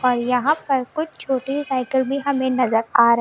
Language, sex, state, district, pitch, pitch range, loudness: Hindi, female, Delhi, New Delhi, 260 Hz, 250-275 Hz, -20 LUFS